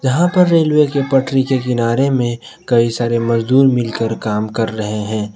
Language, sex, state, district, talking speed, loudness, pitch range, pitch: Hindi, male, Jharkhand, Garhwa, 180 wpm, -15 LUFS, 115-135 Hz, 120 Hz